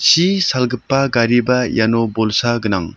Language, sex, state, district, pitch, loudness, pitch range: Garo, male, Meghalaya, South Garo Hills, 120 Hz, -16 LUFS, 110-130 Hz